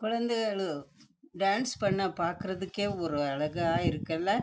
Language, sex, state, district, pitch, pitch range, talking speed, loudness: Tamil, female, Karnataka, Chamarajanagar, 190 Hz, 165-205 Hz, 95 wpm, -31 LUFS